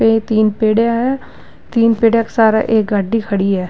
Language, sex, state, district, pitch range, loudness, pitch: Rajasthani, female, Rajasthan, Nagaur, 215-230 Hz, -14 LUFS, 225 Hz